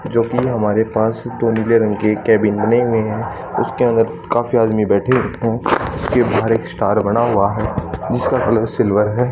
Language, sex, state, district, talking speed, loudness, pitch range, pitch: Hindi, male, Haryana, Charkhi Dadri, 185 wpm, -17 LUFS, 105-120 Hz, 115 Hz